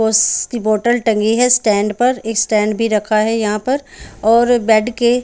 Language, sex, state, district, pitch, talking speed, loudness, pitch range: Hindi, female, Haryana, Charkhi Dadri, 225 Hz, 185 wpm, -15 LUFS, 215-240 Hz